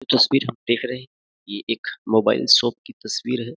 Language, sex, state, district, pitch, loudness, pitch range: Hindi, male, Uttar Pradesh, Jyotiba Phule Nagar, 120 Hz, -20 LUFS, 115-125 Hz